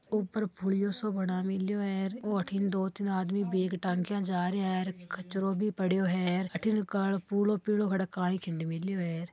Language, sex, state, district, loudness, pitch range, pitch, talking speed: Marwari, female, Rajasthan, Churu, -32 LUFS, 185-200 Hz, 190 Hz, 180 wpm